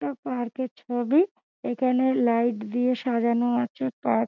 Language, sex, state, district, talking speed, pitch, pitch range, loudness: Bengali, female, West Bengal, Dakshin Dinajpur, 155 wpm, 240 Hz, 235-255 Hz, -25 LUFS